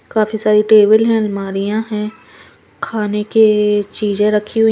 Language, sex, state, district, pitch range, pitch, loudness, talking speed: Hindi, female, Punjab, Pathankot, 210-220 Hz, 210 Hz, -14 LUFS, 140 wpm